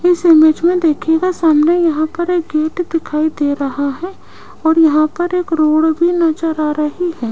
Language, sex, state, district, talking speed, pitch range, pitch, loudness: Hindi, female, Rajasthan, Jaipur, 190 wpm, 305-345 Hz, 320 Hz, -14 LUFS